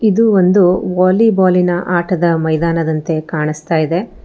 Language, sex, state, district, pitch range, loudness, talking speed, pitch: Kannada, female, Karnataka, Bangalore, 160-185 Hz, -14 LUFS, 85 wpm, 175 Hz